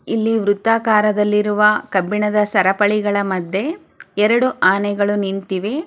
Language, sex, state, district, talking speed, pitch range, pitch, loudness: Kannada, female, Karnataka, Chamarajanagar, 90 wpm, 200-220 Hz, 210 Hz, -17 LUFS